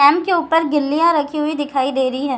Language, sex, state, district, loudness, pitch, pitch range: Hindi, female, Bihar, Jahanabad, -17 LUFS, 295 Hz, 275-325 Hz